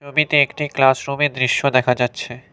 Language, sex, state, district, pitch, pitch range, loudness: Bengali, male, West Bengal, Cooch Behar, 140 Hz, 125-145 Hz, -17 LUFS